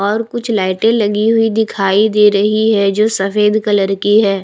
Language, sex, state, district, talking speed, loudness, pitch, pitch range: Hindi, female, Haryana, Rohtak, 190 wpm, -13 LUFS, 210 Hz, 200-220 Hz